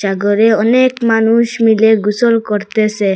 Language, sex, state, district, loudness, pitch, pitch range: Bengali, female, Assam, Hailakandi, -12 LUFS, 220 Hz, 210-230 Hz